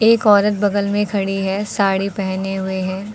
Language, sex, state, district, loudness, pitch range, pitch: Hindi, female, Uttar Pradesh, Lucknow, -18 LUFS, 195-205 Hz, 200 Hz